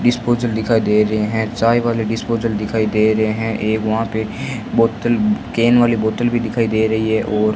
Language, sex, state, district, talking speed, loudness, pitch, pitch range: Hindi, male, Rajasthan, Bikaner, 205 wpm, -17 LUFS, 110 Hz, 110-115 Hz